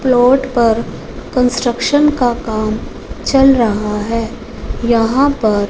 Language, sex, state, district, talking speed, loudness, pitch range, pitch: Hindi, female, Punjab, Fazilka, 105 wpm, -14 LUFS, 225-260 Hz, 240 Hz